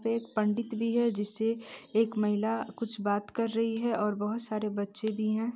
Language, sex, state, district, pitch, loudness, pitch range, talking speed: Hindi, female, Bihar, East Champaran, 220 Hz, -31 LUFS, 210-230 Hz, 195 wpm